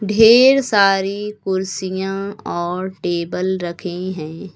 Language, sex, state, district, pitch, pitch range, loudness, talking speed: Hindi, female, Uttar Pradesh, Lucknow, 190 Hz, 180-200 Hz, -18 LUFS, 90 wpm